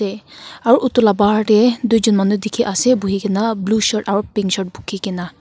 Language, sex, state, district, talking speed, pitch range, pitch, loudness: Nagamese, female, Nagaland, Kohima, 190 wpm, 200-225 Hz, 210 Hz, -16 LUFS